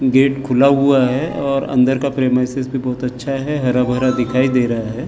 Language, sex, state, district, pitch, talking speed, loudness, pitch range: Hindi, male, Maharashtra, Gondia, 130 Hz, 200 wpm, -16 LUFS, 125-135 Hz